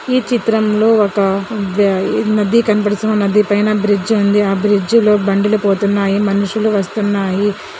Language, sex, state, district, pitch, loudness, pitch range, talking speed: Telugu, male, Andhra Pradesh, Anantapur, 205 Hz, -14 LUFS, 200-215 Hz, 130 wpm